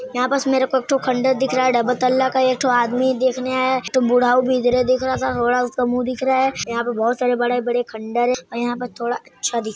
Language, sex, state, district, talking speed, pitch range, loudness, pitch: Hindi, male, Chhattisgarh, Sarguja, 235 wpm, 245-260 Hz, -19 LUFS, 250 Hz